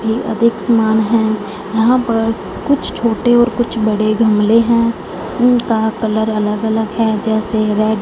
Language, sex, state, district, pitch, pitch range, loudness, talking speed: Hindi, female, Punjab, Fazilka, 220 Hz, 215-230 Hz, -15 LUFS, 155 wpm